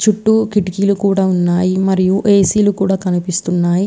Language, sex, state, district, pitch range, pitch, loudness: Telugu, female, Andhra Pradesh, Visakhapatnam, 180-205 Hz, 195 Hz, -14 LUFS